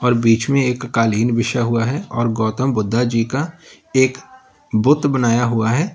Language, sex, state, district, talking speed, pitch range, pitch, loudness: Hindi, male, Uttar Pradesh, Lalitpur, 170 wpm, 115-135 Hz, 120 Hz, -18 LUFS